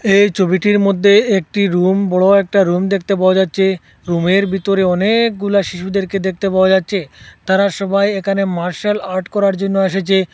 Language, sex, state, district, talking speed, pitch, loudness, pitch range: Bengali, male, Assam, Hailakandi, 150 wpm, 195 Hz, -15 LUFS, 185-200 Hz